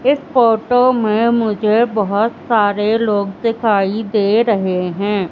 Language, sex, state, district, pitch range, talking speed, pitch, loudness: Hindi, female, Madhya Pradesh, Katni, 205-230 Hz, 125 wpm, 220 Hz, -15 LUFS